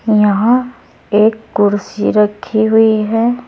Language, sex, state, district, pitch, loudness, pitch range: Hindi, female, Uttar Pradesh, Saharanpur, 220 Hz, -13 LUFS, 210-230 Hz